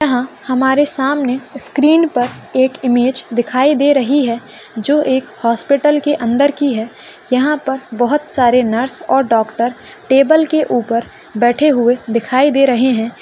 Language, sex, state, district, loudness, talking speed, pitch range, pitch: Hindi, female, Maharashtra, Solapur, -14 LUFS, 155 wpm, 240-285 Hz, 260 Hz